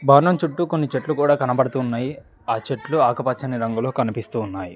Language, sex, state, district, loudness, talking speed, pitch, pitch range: Telugu, male, Telangana, Mahabubabad, -21 LUFS, 150 wpm, 130 Hz, 115-145 Hz